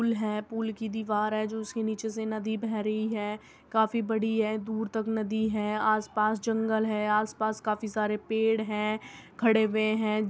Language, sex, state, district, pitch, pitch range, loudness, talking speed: Hindi, female, Uttar Pradesh, Muzaffarnagar, 220 Hz, 215-220 Hz, -29 LUFS, 185 wpm